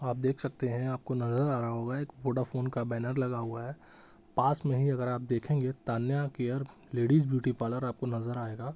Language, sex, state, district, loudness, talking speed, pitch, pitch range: Hindi, male, Bihar, Saran, -32 LUFS, 205 wpm, 125 Hz, 120-135 Hz